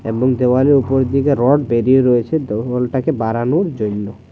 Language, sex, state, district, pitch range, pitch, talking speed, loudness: Bengali, male, Tripura, West Tripura, 115-135 Hz, 125 Hz, 140 wpm, -16 LUFS